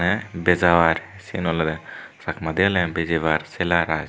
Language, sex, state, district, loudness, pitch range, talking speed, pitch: Chakma, male, Tripura, Unakoti, -21 LUFS, 80-90 Hz, 130 wpm, 85 Hz